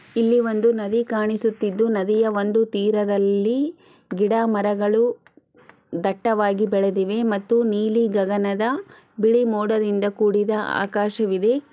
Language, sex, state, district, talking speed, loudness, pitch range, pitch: Kannada, female, Karnataka, Chamarajanagar, 85 wpm, -21 LUFS, 205-230 Hz, 215 Hz